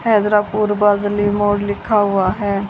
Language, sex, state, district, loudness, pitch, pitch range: Hindi, female, Haryana, Jhajjar, -16 LUFS, 205 Hz, 205-210 Hz